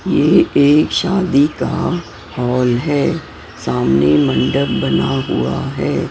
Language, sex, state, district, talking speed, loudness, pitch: Hindi, female, Maharashtra, Mumbai Suburban, 110 wpm, -15 LUFS, 125 Hz